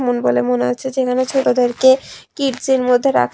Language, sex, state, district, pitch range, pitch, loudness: Bengali, female, Tripura, West Tripura, 245-265 Hz, 250 Hz, -16 LUFS